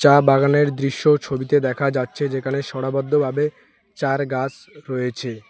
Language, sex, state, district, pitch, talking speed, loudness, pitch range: Bengali, male, West Bengal, Alipurduar, 140 Hz, 130 wpm, -20 LUFS, 130-145 Hz